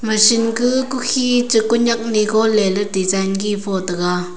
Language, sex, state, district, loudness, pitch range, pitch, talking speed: Wancho, female, Arunachal Pradesh, Longding, -16 LUFS, 195-235 Hz, 220 Hz, 165 wpm